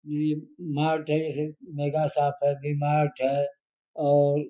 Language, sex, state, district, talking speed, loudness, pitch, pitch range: Hindi, male, Uttar Pradesh, Gorakhpur, 145 wpm, -26 LUFS, 150 Hz, 145-150 Hz